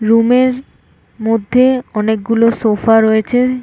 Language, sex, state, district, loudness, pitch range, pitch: Bengali, female, West Bengal, North 24 Parganas, -13 LUFS, 220-250 Hz, 230 Hz